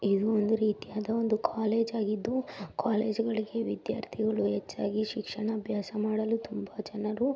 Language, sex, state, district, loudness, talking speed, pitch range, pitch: Kannada, female, Karnataka, Mysore, -31 LUFS, 120 wpm, 210-225 Hz, 215 Hz